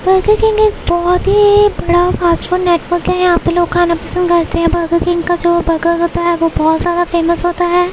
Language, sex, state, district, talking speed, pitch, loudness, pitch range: Hindi, female, Uttar Pradesh, Muzaffarnagar, 210 wpm, 350 Hz, -13 LUFS, 340-360 Hz